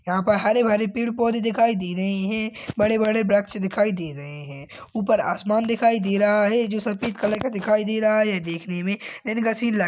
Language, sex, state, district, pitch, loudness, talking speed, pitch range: Hindi, male, Chhattisgarh, Balrampur, 210 Hz, -22 LUFS, 215 wpm, 195-225 Hz